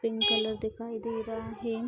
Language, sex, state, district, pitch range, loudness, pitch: Hindi, female, Bihar, Araria, 220-230 Hz, -30 LUFS, 225 Hz